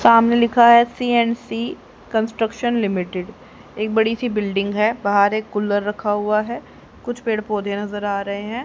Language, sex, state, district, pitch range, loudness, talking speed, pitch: Hindi, female, Haryana, Charkhi Dadri, 205-235 Hz, -19 LUFS, 165 wpm, 220 Hz